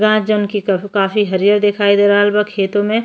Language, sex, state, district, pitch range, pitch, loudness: Bhojpuri, female, Uttar Pradesh, Ghazipur, 200-210 Hz, 205 Hz, -14 LUFS